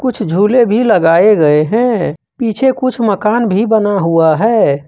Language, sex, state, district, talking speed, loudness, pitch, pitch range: Hindi, male, Jharkhand, Ranchi, 160 wpm, -12 LUFS, 215 Hz, 165-235 Hz